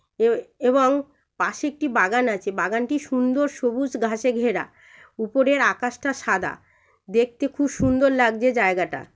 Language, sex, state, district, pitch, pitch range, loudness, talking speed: Bengali, female, West Bengal, Malda, 255 Hz, 235-280 Hz, -22 LUFS, 125 wpm